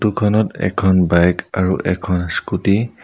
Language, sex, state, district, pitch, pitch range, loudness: Assamese, male, Assam, Sonitpur, 95 Hz, 90-105 Hz, -17 LUFS